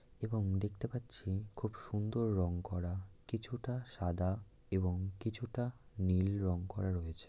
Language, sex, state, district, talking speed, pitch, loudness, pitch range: Bengali, male, West Bengal, Dakshin Dinajpur, 125 wpm, 100 Hz, -39 LUFS, 90-115 Hz